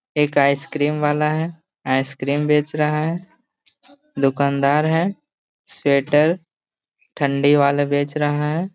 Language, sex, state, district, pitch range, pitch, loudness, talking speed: Hindi, male, Bihar, Gaya, 140-160 Hz, 150 Hz, -19 LUFS, 105 wpm